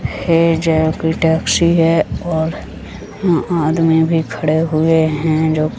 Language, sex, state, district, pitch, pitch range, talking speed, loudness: Hindi, female, Chhattisgarh, Rajnandgaon, 160 Hz, 155-165 Hz, 145 wpm, -15 LUFS